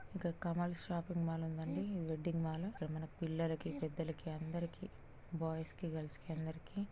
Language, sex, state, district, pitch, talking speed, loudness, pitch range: Telugu, female, Telangana, Karimnagar, 165 Hz, 155 wpm, -42 LUFS, 160-170 Hz